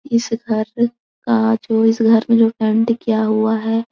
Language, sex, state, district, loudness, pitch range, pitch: Hindi, female, Bihar, Supaul, -17 LUFS, 220-230 Hz, 225 Hz